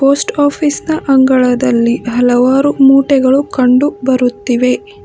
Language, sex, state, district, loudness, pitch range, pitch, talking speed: Kannada, female, Karnataka, Bangalore, -11 LUFS, 250-285 Hz, 265 Hz, 95 wpm